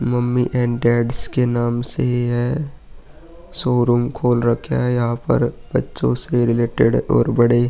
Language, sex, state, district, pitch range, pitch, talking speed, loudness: Hindi, male, Uttar Pradesh, Muzaffarnagar, 120-125 Hz, 120 Hz, 150 wpm, -19 LUFS